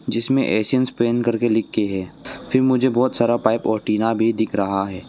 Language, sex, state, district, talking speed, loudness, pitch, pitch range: Hindi, male, Arunachal Pradesh, Longding, 210 wpm, -20 LUFS, 115 Hz, 105-125 Hz